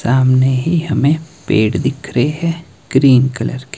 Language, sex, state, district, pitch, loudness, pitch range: Hindi, male, Himachal Pradesh, Shimla, 130 Hz, -15 LUFS, 130-155 Hz